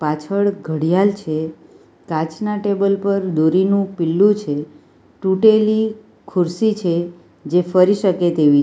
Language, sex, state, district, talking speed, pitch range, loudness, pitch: Gujarati, female, Gujarat, Valsad, 120 wpm, 160-200 Hz, -18 LUFS, 185 Hz